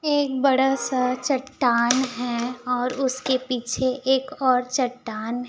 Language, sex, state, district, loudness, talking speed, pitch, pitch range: Hindi, male, Chhattisgarh, Raipur, -23 LUFS, 120 wpm, 255 Hz, 245-265 Hz